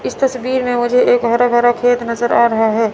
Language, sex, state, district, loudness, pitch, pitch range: Hindi, female, Chandigarh, Chandigarh, -14 LUFS, 240 Hz, 235-245 Hz